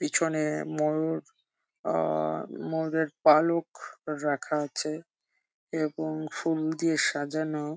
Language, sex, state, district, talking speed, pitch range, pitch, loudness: Bengali, female, West Bengal, Jhargram, 85 wpm, 150-160 Hz, 155 Hz, -28 LUFS